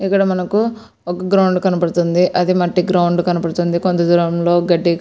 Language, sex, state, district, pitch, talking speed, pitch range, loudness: Telugu, female, Andhra Pradesh, Srikakulam, 175 Hz, 170 wpm, 175-185 Hz, -16 LUFS